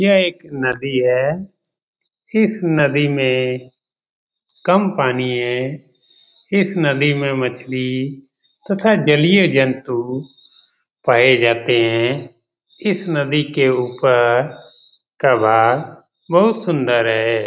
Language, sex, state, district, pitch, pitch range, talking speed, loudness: Hindi, male, Bihar, Jamui, 135 Hz, 125-165 Hz, 95 wpm, -17 LUFS